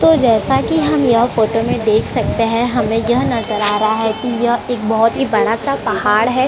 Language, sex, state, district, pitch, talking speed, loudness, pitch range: Hindi, female, Chhattisgarh, Korba, 225 Hz, 240 wpm, -15 LUFS, 215-240 Hz